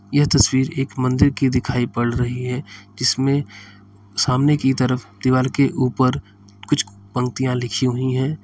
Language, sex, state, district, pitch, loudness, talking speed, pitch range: Hindi, male, Uttar Pradesh, Lalitpur, 125 Hz, -20 LUFS, 150 wpm, 115-135 Hz